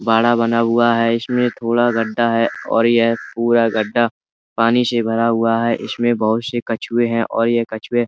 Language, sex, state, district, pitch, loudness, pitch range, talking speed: Hindi, male, Uttar Pradesh, Budaun, 115 Hz, -17 LUFS, 115-120 Hz, 195 wpm